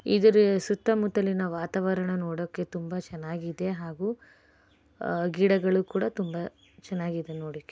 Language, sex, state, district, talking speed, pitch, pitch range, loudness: Kannada, female, Karnataka, Bellary, 110 wpm, 185 Hz, 170-195 Hz, -28 LUFS